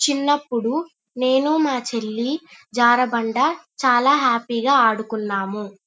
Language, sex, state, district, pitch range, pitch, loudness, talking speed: Telugu, female, Andhra Pradesh, Chittoor, 225-280 Hz, 245 Hz, -20 LUFS, 90 wpm